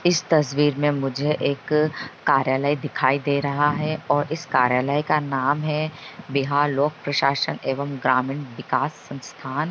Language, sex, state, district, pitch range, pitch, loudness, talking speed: Hindi, male, Bihar, Jahanabad, 135-150 Hz, 145 Hz, -22 LUFS, 140 wpm